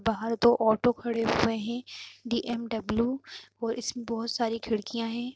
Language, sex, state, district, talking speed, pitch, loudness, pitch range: Hindi, female, Uttar Pradesh, Jyotiba Phule Nagar, 145 wpm, 230 Hz, -29 LUFS, 225-240 Hz